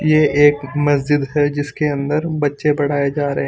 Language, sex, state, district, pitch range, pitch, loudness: Hindi, male, Chandigarh, Chandigarh, 145-150 Hz, 145 Hz, -17 LUFS